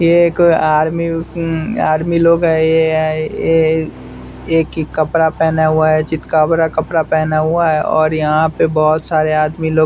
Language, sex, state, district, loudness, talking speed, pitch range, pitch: Hindi, male, Bihar, West Champaran, -14 LUFS, 175 wpm, 155-165 Hz, 160 Hz